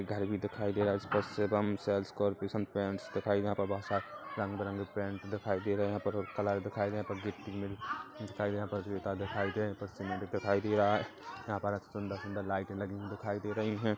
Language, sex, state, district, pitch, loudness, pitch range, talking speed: Hindi, male, Chhattisgarh, Kabirdham, 100 Hz, -36 LUFS, 100-105 Hz, 250 wpm